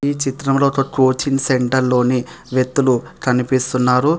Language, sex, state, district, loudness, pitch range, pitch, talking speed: Telugu, male, Telangana, Hyderabad, -17 LUFS, 125-140 Hz, 130 Hz, 115 wpm